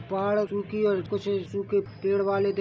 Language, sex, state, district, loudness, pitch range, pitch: Hindi, male, Chhattisgarh, Bilaspur, -27 LUFS, 195-205 Hz, 200 Hz